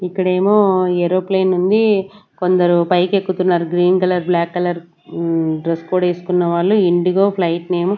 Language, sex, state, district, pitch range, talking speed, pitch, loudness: Telugu, female, Andhra Pradesh, Sri Satya Sai, 175-190 Hz, 145 wpm, 180 Hz, -16 LUFS